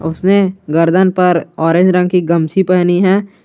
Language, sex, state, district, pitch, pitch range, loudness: Hindi, male, Jharkhand, Garhwa, 180 Hz, 170-190 Hz, -12 LUFS